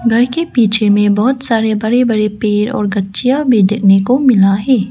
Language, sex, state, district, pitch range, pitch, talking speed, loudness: Hindi, female, Arunachal Pradesh, Lower Dibang Valley, 205-250 Hz, 220 Hz, 195 wpm, -12 LUFS